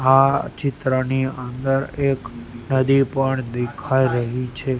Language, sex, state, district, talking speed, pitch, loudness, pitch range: Gujarati, male, Gujarat, Gandhinagar, 110 wpm, 130 Hz, -21 LUFS, 125-135 Hz